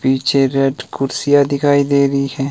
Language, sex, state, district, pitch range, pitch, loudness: Hindi, male, Himachal Pradesh, Shimla, 135-140 Hz, 140 Hz, -15 LUFS